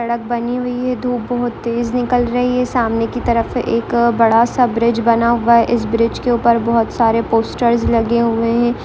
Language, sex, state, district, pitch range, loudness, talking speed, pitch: Hindi, female, Bihar, Madhepura, 230-245 Hz, -16 LUFS, 215 wpm, 235 Hz